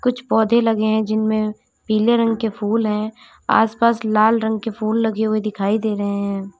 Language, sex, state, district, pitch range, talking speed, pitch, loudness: Hindi, female, Uttar Pradesh, Lalitpur, 215-225 Hz, 200 wpm, 220 Hz, -19 LUFS